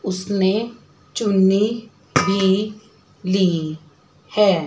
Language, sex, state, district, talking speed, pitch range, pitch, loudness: Hindi, female, Chandigarh, Chandigarh, 65 wpm, 170-210 Hz, 190 Hz, -20 LUFS